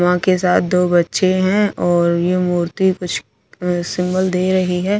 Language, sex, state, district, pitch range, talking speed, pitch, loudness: Hindi, female, Delhi, New Delhi, 175-185 Hz, 180 wpm, 180 Hz, -17 LUFS